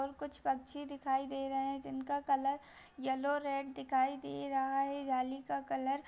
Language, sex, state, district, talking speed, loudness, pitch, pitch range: Hindi, female, Chhattisgarh, Bilaspur, 195 wpm, -37 LUFS, 275 Hz, 265-280 Hz